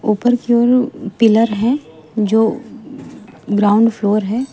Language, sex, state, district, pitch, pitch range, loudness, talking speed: Hindi, female, Uttar Pradesh, Lucknow, 225 Hz, 210-240 Hz, -15 LUFS, 120 wpm